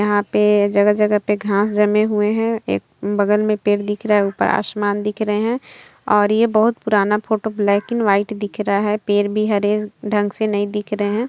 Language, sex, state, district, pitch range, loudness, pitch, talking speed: Hindi, female, Bihar, Jamui, 205-215 Hz, -18 LUFS, 210 Hz, 210 wpm